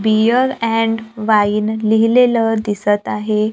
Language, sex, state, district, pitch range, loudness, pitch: Marathi, female, Maharashtra, Gondia, 215-225 Hz, -15 LUFS, 220 Hz